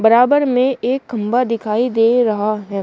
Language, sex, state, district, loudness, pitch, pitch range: Hindi, female, Uttar Pradesh, Shamli, -16 LUFS, 235 Hz, 215-250 Hz